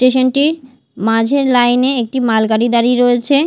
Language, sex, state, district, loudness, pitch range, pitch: Bengali, female, Odisha, Malkangiri, -13 LUFS, 235-260 Hz, 250 Hz